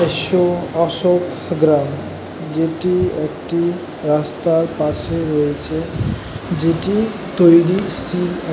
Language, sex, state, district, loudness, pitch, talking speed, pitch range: Bengali, male, West Bengal, Dakshin Dinajpur, -18 LUFS, 165 Hz, 85 wpm, 155-175 Hz